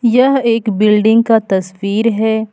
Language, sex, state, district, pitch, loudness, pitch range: Hindi, female, Jharkhand, Ranchi, 220 Hz, -13 LUFS, 210-230 Hz